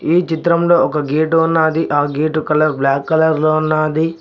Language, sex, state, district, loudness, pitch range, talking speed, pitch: Telugu, male, Telangana, Mahabubabad, -15 LUFS, 150-160 Hz, 170 wpm, 155 Hz